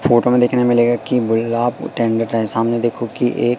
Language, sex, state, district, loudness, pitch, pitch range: Hindi, male, Madhya Pradesh, Katni, -17 LUFS, 120 Hz, 115-120 Hz